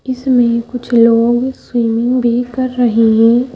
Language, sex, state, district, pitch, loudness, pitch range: Hindi, female, Madhya Pradesh, Bhopal, 240 Hz, -13 LUFS, 235-250 Hz